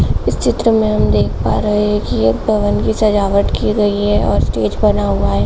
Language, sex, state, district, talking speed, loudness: Hindi, female, Uttar Pradesh, Jalaun, 230 wpm, -15 LUFS